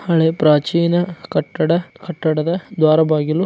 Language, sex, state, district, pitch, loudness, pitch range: Kannada, male, Karnataka, Dharwad, 165 Hz, -17 LUFS, 155-175 Hz